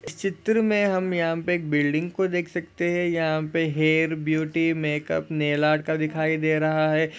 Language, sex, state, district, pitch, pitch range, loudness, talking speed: Hindi, male, Maharashtra, Solapur, 160 Hz, 155-175 Hz, -24 LUFS, 175 wpm